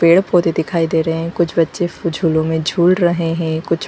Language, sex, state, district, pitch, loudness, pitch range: Hindi, female, Jharkhand, Jamtara, 165 Hz, -16 LUFS, 160-175 Hz